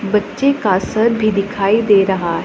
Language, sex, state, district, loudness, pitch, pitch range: Hindi, female, Punjab, Pathankot, -15 LUFS, 205 Hz, 195-220 Hz